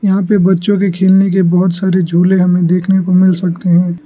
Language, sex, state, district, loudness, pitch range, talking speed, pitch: Hindi, male, Arunachal Pradesh, Lower Dibang Valley, -11 LUFS, 180-190 Hz, 220 wpm, 185 Hz